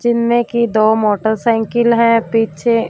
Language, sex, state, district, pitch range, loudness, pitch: Hindi, female, Punjab, Fazilka, 220-235 Hz, -14 LUFS, 230 Hz